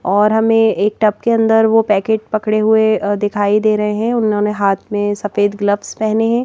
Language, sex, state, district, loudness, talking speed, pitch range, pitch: Hindi, female, Madhya Pradesh, Bhopal, -15 LUFS, 195 wpm, 205-220 Hz, 215 Hz